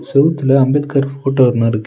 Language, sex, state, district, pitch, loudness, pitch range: Tamil, male, Tamil Nadu, Nilgiris, 135 Hz, -14 LUFS, 130-140 Hz